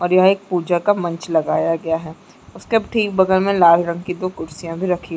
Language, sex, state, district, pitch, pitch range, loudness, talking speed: Chhattisgarhi, female, Chhattisgarh, Jashpur, 175 Hz, 165-190 Hz, -18 LUFS, 230 wpm